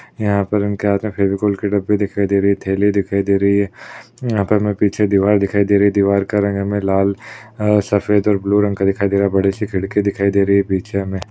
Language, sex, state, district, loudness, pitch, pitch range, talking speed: Hindi, male, Uttar Pradesh, Jalaun, -17 LUFS, 100 Hz, 100-105 Hz, 250 wpm